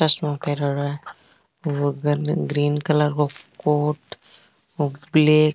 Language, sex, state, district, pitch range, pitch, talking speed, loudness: Marwari, female, Rajasthan, Nagaur, 145-150 Hz, 150 Hz, 140 wpm, -22 LUFS